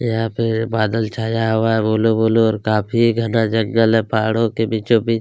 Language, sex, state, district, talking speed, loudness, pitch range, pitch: Hindi, male, Chhattisgarh, Kabirdham, 220 wpm, -17 LUFS, 110-115 Hz, 115 Hz